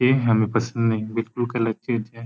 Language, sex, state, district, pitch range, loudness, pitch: Hindi, male, Uttar Pradesh, Ghazipur, 115-120 Hz, -23 LUFS, 115 Hz